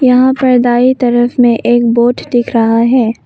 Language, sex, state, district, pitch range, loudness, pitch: Hindi, female, Arunachal Pradesh, Longding, 235-250 Hz, -10 LUFS, 240 Hz